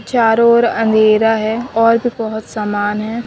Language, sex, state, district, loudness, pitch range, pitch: Hindi, female, Punjab, Pathankot, -14 LUFS, 215-235 Hz, 225 Hz